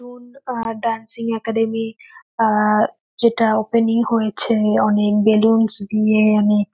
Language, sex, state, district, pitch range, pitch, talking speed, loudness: Bengali, female, West Bengal, North 24 Parganas, 215-230 Hz, 225 Hz, 105 wpm, -18 LUFS